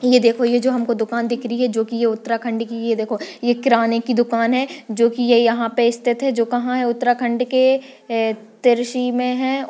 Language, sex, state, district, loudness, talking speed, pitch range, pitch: Hindi, female, Uttarakhand, Tehri Garhwal, -19 LUFS, 235 wpm, 230-250 Hz, 240 Hz